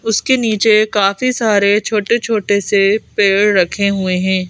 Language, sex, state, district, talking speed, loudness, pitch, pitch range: Hindi, female, Madhya Pradesh, Bhopal, 145 wpm, -14 LUFS, 205 Hz, 200-220 Hz